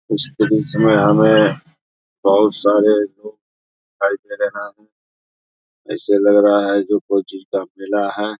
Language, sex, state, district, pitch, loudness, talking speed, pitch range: Hindi, male, Bihar, Vaishali, 105 Hz, -16 LUFS, 155 wpm, 100-110 Hz